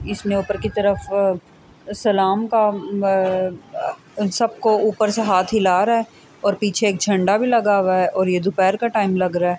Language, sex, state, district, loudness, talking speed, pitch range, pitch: Urdu, female, Andhra Pradesh, Anantapur, -19 LUFS, 180 wpm, 190-215 Hz, 200 Hz